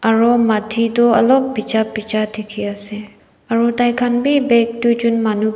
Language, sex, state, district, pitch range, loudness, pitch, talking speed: Nagamese, female, Nagaland, Dimapur, 215-240 Hz, -16 LUFS, 230 Hz, 160 wpm